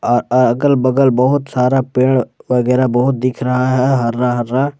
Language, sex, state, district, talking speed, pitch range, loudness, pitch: Hindi, male, Jharkhand, Palamu, 165 wpm, 125-130 Hz, -14 LUFS, 130 Hz